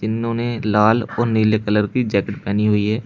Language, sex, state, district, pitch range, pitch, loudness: Hindi, male, Uttar Pradesh, Shamli, 105-115 Hz, 110 Hz, -18 LUFS